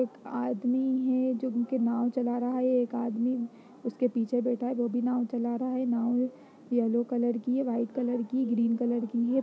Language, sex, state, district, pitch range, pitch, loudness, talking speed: Hindi, female, Bihar, Jamui, 235-255 Hz, 245 Hz, -29 LUFS, 215 wpm